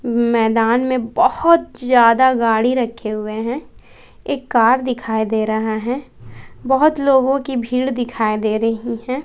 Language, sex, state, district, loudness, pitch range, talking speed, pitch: Hindi, female, Bihar, West Champaran, -17 LUFS, 225-260 Hz, 145 wpm, 240 Hz